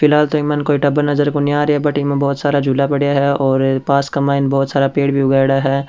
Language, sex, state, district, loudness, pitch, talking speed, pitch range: Rajasthani, male, Rajasthan, Churu, -15 LUFS, 140 Hz, 295 wpm, 135-145 Hz